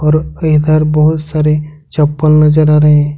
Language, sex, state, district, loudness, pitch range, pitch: Hindi, male, Jharkhand, Ranchi, -11 LUFS, 150-155 Hz, 150 Hz